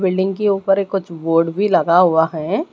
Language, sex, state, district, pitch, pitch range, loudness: Hindi, female, Odisha, Malkangiri, 185 Hz, 165-195 Hz, -17 LUFS